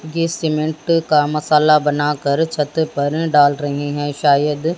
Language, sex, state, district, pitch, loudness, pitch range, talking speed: Hindi, female, Haryana, Jhajjar, 150 Hz, -17 LUFS, 145-160 Hz, 140 wpm